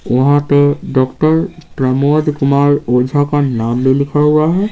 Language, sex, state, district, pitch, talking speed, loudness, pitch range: Hindi, male, Bihar, Patna, 145 Hz, 140 wpm, -13 LUFS, 130-150 Hz